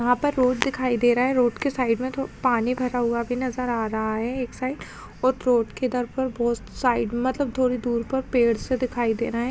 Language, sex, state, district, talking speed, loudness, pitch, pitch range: Hindi, female, Uttar Pradesh, Muzaffarnagar, 245 wpm, -24 LUFS, 250 Hz, 235-255 Hz